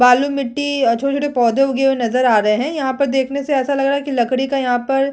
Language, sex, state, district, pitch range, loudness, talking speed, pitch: Hindi, female, Chhattisgarh, Sukma, 250-280 Hz, -17 LUFS, 270 wpm, 270 Hz